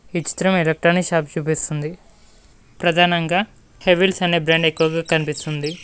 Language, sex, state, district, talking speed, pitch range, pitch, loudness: Telugu, male, Telangana, Mahabubabad, 115 wpm, 160-180 Hz, 165 Hz, -19 LUFS